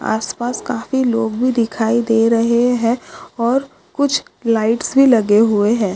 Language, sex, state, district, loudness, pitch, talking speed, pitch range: Hindi, female, Maharashtra, Nagpur, -16 LUFS, 235 Hz, 160 wpm, 225-250 Hz